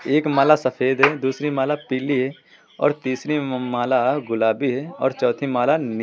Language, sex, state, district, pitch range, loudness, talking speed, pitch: Hindi, male, Uttar Pradesh, Lucknow, 130-145 Hz, -21 LUFS, 160 wpm, 135 Hz